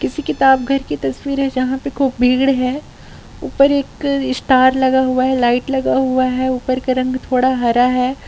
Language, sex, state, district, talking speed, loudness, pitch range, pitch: Hindi, female, Chhattisgarh, Raigarh, 190 wpm, -16 LUFS, 255-270 Hz, 260 Hz